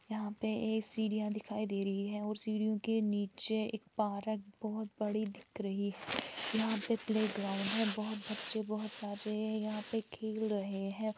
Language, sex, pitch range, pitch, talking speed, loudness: Urdu, female, 205-220 Hz, 215 Hz, 170 wpm, -37 LUFS